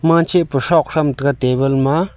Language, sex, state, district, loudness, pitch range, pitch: Wancho, male, Arunachal Pradesh, Longding, -16 LUFS, 135-165 Hz, 150 Hz